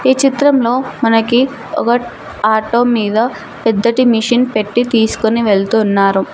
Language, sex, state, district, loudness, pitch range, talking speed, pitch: Telugu, female, Telangana, Mahabubabad, -13 LUFS, 220-245 Hz, 115 wpm, 230 Hz